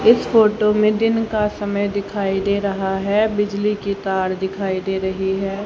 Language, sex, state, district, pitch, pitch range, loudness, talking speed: Hindi, female, Haryana, Jhajjar, 200 Hz, 195-210 Hz, -19 LUFS, 180 wpm